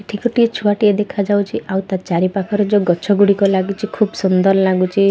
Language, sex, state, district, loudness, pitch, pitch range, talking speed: Odia, female, Odisha, Malkangiri, -16 LUFS, 200 Hz, 190-205 Hz, 175 wpm